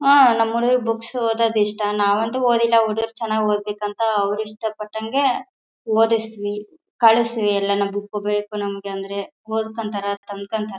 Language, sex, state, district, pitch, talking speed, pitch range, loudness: Kannada, female, Karnataka, Bellary, 220 Hz, 120 wpm, 205-230 Hz, -21 LUFS